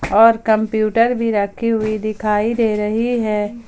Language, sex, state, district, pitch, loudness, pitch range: Hindi, female, Jharkhand, Ranchi, 220 Hz, -17 LUFS, 210-230 Hz